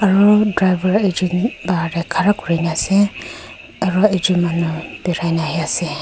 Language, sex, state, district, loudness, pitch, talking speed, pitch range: Nagamese, female, Nagaland, Kohima, -17 LUFS, 180 Hz, 160 wpm, 170-200 Hz